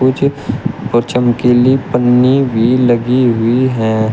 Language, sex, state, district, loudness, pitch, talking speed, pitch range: Hindi, male, Uttar Pradesh, Shamli, -12 LUFS, 125 Hz, 115 wpm, 120-130 Hz